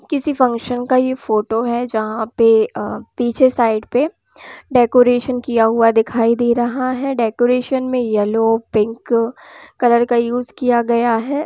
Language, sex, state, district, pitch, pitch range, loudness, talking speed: Hindi, female, Bihar, East Champaran, 240 Hz, 230-255 Hz, -16 LUFS, 150 wpm